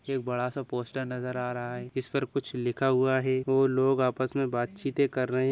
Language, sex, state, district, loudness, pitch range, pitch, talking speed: Hindi, male, Bihar, Begusarai, -29 LUFS, 125-135 Hz, 130 Hz, 220 wpm